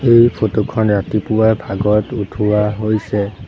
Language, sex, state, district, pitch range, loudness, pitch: Assamese, male, Assam, Sonitpur, 105-110 Hz, -16 LUFS, 105 Hz